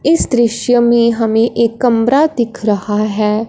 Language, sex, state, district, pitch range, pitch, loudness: Hindi, female, Punjab, Fazilka, 220-245 Hz, 235 Hz, -13 LUFS